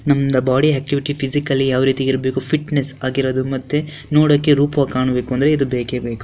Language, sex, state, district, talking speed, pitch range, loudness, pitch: Kannada, female, Karnataka, Dharwad, 155 wpm, 130-145 Hz, -18 LUFS, 135 Hz